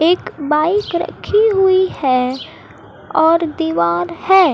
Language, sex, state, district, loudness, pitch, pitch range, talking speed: Hindi, female, Maharashtra, Mumbai Suburban, -15 LUFS, 330 Hz, 285-375 Hz, 105 wpm